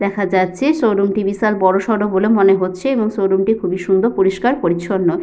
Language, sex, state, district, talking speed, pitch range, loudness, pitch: Bengali, female, Jharkhand, Sahebganj, 185 wpm, 190-220 Hz, -16 LUFS, 195 Hz